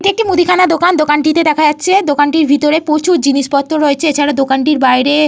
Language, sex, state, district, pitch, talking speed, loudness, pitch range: Bengali, female, Jharkhand, Jamtara, 300 Hz, 170 wpm, -11 LUFS, 290-335 Hz